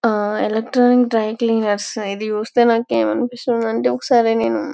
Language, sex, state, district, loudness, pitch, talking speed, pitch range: Telugu, female, Telangana, Karimnagar, -18 LUFS, 225 Hz, 175 wpm, 205-235 Hz